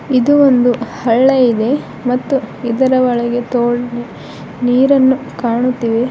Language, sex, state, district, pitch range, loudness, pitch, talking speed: Kannada, female, Karnataka, Bidar, 235-260 Hz, -14 LUFS, 245 Hz, 100 wpm